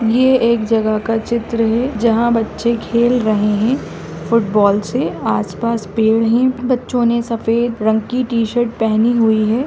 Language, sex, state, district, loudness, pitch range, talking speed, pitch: Hindi, female, Bihar, Madhepura, -16 LUFS, 220-240 Hz, 155 wpm, 230 Hz